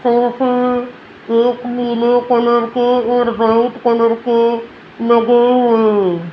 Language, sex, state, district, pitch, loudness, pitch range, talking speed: Hindi, female, Rajasthan, Jaipur, 240 Hz, -14 LUFS, 230-245 Hz, 125 wpm